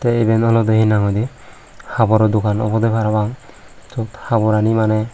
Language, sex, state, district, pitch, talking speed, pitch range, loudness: Chakma, female, Tripura, Unakoti, 110 Hz, 130 wpm, 110-115 Hz, -17 LUFS